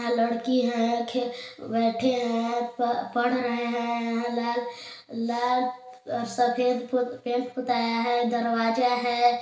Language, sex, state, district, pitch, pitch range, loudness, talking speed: Hindi, male, Chhattisgarh, Balrampur, 240 Hz, 235-245 Hz, -26 LUFS, 95 wpm